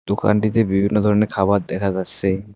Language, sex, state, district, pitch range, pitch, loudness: Bengali, male, West Bengal, Cooch Behar, 95-105 Hz, 100 Hz, -19 LUFS